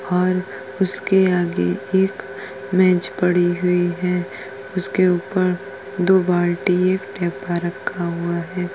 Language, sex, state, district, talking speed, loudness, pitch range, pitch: Hindi, female, Uttar Pradesh, Etah, 115 wpm, -19 LUFS, 170-185 Hz, 180 Hz